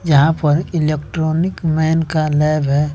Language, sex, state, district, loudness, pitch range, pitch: Hindi, male, Bihar, West Champaran, -16 LUFS, 150-160 Hz, 155 Hz